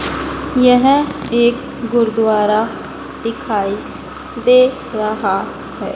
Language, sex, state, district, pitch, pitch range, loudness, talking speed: Hindi, female, Madhya Pradesh, Dhar, 235 Hz, 215-255 Hz, -15 LUFS, 70 wpm